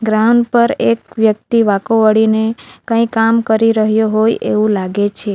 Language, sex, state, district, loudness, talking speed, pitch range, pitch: Gujarati, female, Gujarat, Valsad, -13 LUFS, 155 wpm, 215-225 Hz, 220 Hz